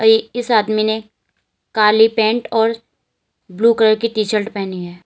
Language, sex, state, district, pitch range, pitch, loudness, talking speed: Hindi, female, Uttar Pradesh, Lalitpur, 215-225 Hz, 220 Hz, -16 LUFS, 155 wpm